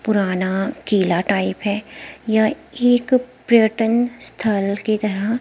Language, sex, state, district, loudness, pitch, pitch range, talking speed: Hindi, female, Himachal Pradesh, Shimla, -19 LUFS, 215 Hz, 200-240 Hz, 110 wpm